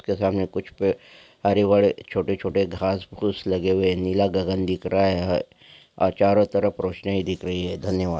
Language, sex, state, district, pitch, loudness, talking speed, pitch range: Hindi, male, Maharashtra, Aurangabad, 95 Hz, -23 LUFS, 175 wpm, 95-100 Hz